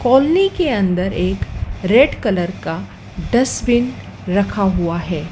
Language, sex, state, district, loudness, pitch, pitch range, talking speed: Hindi, female, Madhya Pradesh, Dhar, -17 LUFS, 200 Hz, 180-250 Hz, 125 wpm